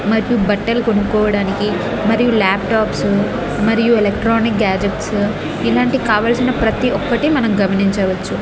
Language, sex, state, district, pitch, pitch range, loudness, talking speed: Telugu, female, Andhra Pradesh, Annamaya, 215 Hz, 200-230 Hz, -16 LUFS, 100 wpm